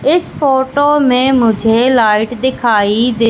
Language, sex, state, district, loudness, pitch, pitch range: Hindi, female, Madhya Pradesh, Katni, -12 LUFS, 250 Hz, 225-265 Hz